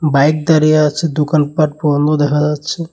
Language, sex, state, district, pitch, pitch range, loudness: Bengali, male, Tripura, West Tripura, 150 Hz, 150-155 Hz, -14 LUFS